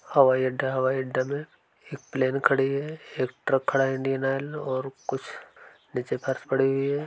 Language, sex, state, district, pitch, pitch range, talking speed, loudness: Hindi, male, Uttar Pradesh, Varanasi, 135 Hz, 130-140 Hz, 195 wpm, -26 LUFS